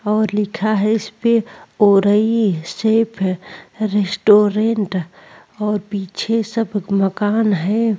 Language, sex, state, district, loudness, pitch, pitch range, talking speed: Hindi, female, Uttar Pradesh, Jalaun, -17 LUFS, 210 Hz, 200-220 Hz, 100 wpm